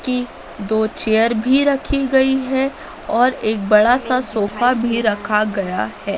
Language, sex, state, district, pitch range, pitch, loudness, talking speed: Hindi, female, Madhya Pradesh, Dhar, 215-260 Hz, 235 Hz, -17 LUFS, 155 wpm